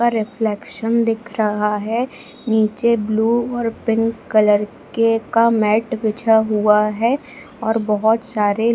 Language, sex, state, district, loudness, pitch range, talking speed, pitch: Hindi, female, Bihar, Jahanabad, -18 LUFS, 215-230 Hz, 130 wpm, 225 Hz